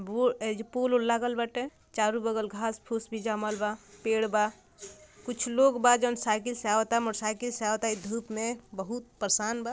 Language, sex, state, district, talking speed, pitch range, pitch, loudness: Bhojpuri, female, Bihar, Gopalganj, 185 wpm, 215-240 Hz, 225 Hz, -29 LUFS